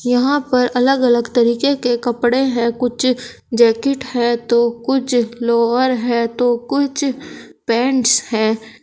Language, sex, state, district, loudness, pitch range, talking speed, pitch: Hindi, female, Uttar Pradesh, Shamli, -16 LUFS, 235-260 Hz, 130 wpm, 245 Hz